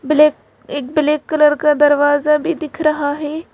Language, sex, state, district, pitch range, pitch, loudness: Hindi, female, Madhya Pradesh, Bhopal, 290-305 Hz, 300 Hz, -15 LUFS